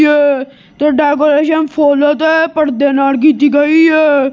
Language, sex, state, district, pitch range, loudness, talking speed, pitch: Punjabi, female, Punjab, Kapurthala, 285-310 Hz, -11 LUFS, 140 wpm, 295 Hz